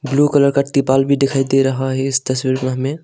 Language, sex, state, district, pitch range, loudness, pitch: Hindi, male, Arunachal Pradesh, Longding, 130-140 Hz, -16 LUFS, 135 Hz